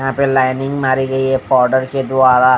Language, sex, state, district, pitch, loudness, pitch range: Hindi, male, Odisha, Malkangiri, 130 Hz, -14 LUFS, 130-135 Hz